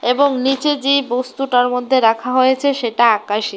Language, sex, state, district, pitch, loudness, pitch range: Bengali, female, Tripura, West Tripura, 255 Hz, -16 LUFS, 240-275 Hz